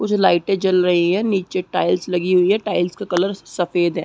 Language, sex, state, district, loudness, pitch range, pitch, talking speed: Hindi, female, Chhattisgarh, Sarguja, -18 LUFS, 175-195 Hz, 185 Hz, 220 wpm